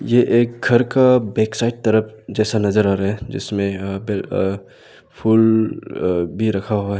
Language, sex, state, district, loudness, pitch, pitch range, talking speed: Hindi, male, Arunachal Pradesh, Lower Dibang Valley, -18 LUFS, 110 Hz, 100-115 Hz, 190 wpm